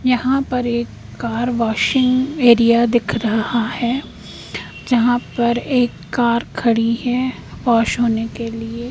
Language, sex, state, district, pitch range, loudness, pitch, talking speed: Hindi, female, Madhya Pradesh, Umaria, 230-250 Hz, -18 LUFS, 235 Hz, 130 wpm